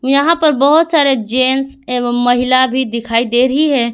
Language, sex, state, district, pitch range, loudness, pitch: Hindi, female, Jharkhand, Garhwa, 245-280 Hz, -13 LUFS, 260 Hz